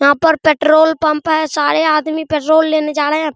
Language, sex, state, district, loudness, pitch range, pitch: Hindi, male, Bihar, Araria, -13 LUFS, 300-315 Hz, 310 Hz